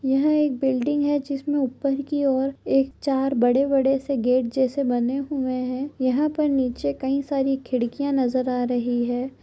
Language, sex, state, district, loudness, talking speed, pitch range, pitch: Hindi, female, Chhattisgarh, Korba, -23 LUFS, 180 wpm, 255-280 Hz, 270 Hz